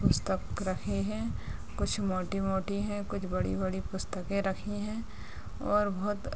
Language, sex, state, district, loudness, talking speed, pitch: Hindi, female, Bihar, Madhepura, -33 LUFS, 130 wpm, 190 Hz